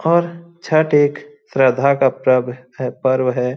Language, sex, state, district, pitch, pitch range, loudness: Hindi, male, Bihar, Lakhisarai, 135 Hz, 125-150 Hz, -17 LUFS